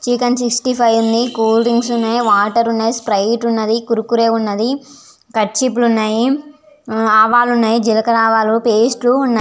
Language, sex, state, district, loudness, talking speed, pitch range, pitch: Telugu, female, Andhra Pradesh, Visakhapatnam, -14 LUFS, 145 wpm, 225-245 Hz, 230 Hz